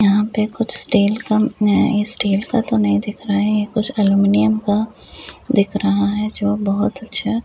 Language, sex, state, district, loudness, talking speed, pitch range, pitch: Hindi, female, Uttar Pradesh, Deoria, -17 LUFS, 185 wpm, 205-220 Hz, 210 Hz